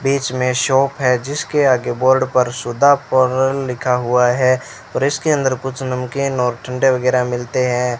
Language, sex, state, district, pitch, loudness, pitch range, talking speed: Hindi, male, Rajasthan, Bikaner, 130 Hz, -17 LUFS, 125-135 Hz, 175 wpm